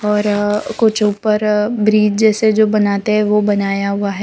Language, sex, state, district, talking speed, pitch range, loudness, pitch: Hindi, female, Gujarat, Valsad, 185 wpm, 205-215 Hz, -15 LUFS, 210 Hz